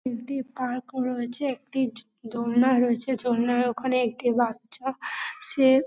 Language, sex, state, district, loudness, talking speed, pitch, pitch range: Bengali, female, West Bengal, Dakshin Dinajpur, -26 LUFS, 110 wpm, 250 Hz, 240-265 Hz